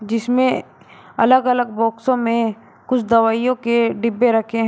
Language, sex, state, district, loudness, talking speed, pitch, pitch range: Hindi, male, Uttar Pradesh, Shamli, -18 LUFS, 140 wpm, 230 Hz, 225-245 Hz